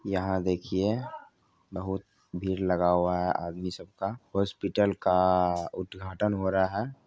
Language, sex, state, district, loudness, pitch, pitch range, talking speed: Maithili, male, Bihar, Supaul, -29 LUFS, 95 Hz, 90-100 Hz, 125 wpm